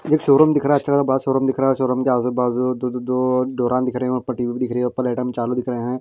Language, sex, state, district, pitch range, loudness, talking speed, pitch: Hindi, male, Delhi, New Delhi, 125-135 Hz, -19 LUFS, 310 wpm, 125 Hz